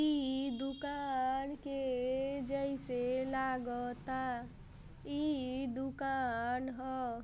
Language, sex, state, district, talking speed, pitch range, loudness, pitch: Bhojpuri, female, Uttar Pradesh, Gorakhpur, 65 wpm, 255-275 Hz, -38 LUFS, 265 Hz